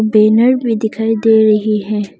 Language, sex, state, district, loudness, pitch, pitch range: Hindi, female, Arunachal Pradesh, Longding, -13 LUFS, 220 Hz, 215-225 Hz